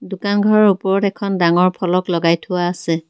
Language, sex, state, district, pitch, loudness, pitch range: Assamese, female, Assam, Kamrup Metropolitan, 185 Hz, -16 LUFS, 175-200 Hz